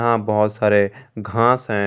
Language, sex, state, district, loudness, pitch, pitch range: Hindi, male, Jharkhand, Garhwa, -18 LUFS, 110 Hz, 105-120 Hz